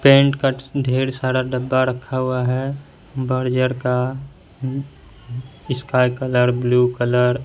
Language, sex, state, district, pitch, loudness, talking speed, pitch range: Hindi, male, Bihar, Katihar, 130 Hz, -20 LUFS, 130 wpm, 125-135 Hz